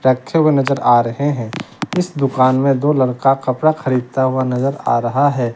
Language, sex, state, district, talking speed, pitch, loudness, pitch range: Hindi, male, Bihar, West Champaran, 195 wpm, 135 Hz, -16 LUFS, 130-145 Hz